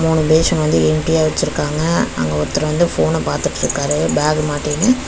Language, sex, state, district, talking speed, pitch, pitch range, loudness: Tamil, female, Tamil Nadu, Chennai, 140 wpm, 155 Hz, 145-160 Hz, -16 LUFS